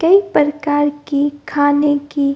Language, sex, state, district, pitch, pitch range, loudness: Hindi, female, Bihar, Gopalganj, 290 Hz, 285-295 Hz, -16 LUFS